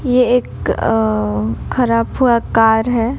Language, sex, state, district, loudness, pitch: Hindi, female, Odisha, Nuapada, -15 LUFS, 230 Hz